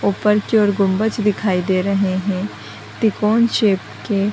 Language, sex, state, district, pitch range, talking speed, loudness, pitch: Hindi, female, Uttar Pradesh, Deoria, 195-215 Hz, 150 wpm, -18 LUFS, 205 Hz